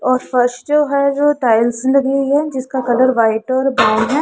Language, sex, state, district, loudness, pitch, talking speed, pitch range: Hindi, female, Punjab, Pathankot, -15 LUFS, 260 Hz, 215 wpm, 245-280 Hz